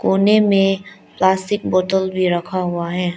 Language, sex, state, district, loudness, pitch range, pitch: Hindi, female, Arunachal Pradesh, Lower Dibang Valley, -17 LUFS, 180-195 Hz, 190 Hz